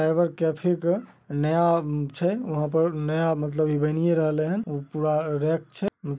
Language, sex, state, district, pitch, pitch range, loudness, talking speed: Magahi, male, Bihar, Samastipur, 160 Hz, 150-170 Hz, -25 LUFS, 155 wpm